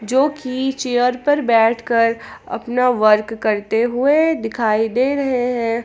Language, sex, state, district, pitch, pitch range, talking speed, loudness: Hindi, female, Jharkhand, Palamu, 245 Hz, 225-260 Hz, 135 wpm, -17 LUFS